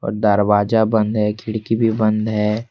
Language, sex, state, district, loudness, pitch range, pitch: Hindi, male, Jharkhand, Deoghar, -18 LUFS, 105-110 Hz, 110 Hz